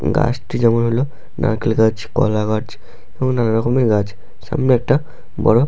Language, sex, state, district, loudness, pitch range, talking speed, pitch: Bengali, male, West Bengal, Malda, -18 LUFS, 110-130 Hz, 150 wpm, 115 Hz